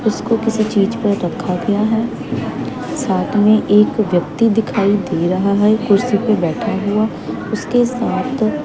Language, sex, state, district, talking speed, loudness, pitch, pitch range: Hindi, female, Chandigarh, Chandigarh, 145 wpm, -16 LUFS, 215 Hz, 200-225 Hz